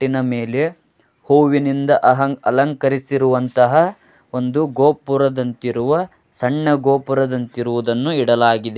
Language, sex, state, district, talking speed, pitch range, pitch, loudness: Kannada, male, Karnataka, Dharwad, 75 wpm, 125-145 Hz, 135 Hz, -17 LUFS